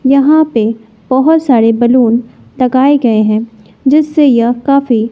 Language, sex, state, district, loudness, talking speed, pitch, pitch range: Hindi, female, Bihar, West Champaran, -10 LUFS, 130 wpm, 250 Hz, 230-275 Hz